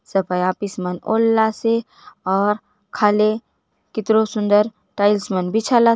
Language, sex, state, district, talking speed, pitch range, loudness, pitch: Halbi, female, Chhattisgarh, Bastar, 110 wpm, 200-220 Hz, -19 LUFS, 210 Hz